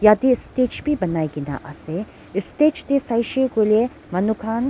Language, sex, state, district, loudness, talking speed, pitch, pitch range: Nagamese, female, Nagaland, Dimapur, -21 LUFS, 155 wpm, 220 Hz, 180-255 Hz